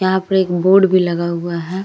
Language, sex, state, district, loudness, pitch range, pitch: Hindi, female, Uttar Pradesh, Hamirpur, -15 LUFS, 170-190 Hz, 185 Hz